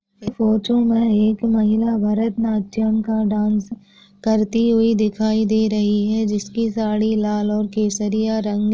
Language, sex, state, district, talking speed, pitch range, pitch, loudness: Hindi, female, Maharashtra, Sindhudurg, 145 wpm, 210-220 Hz, 215 Hz, -19 LUFS